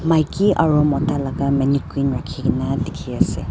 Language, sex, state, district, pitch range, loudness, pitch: Nagamese, female, Nagaland, Dimapur, 140-155 Hz, -19 LUFS, 140 Hz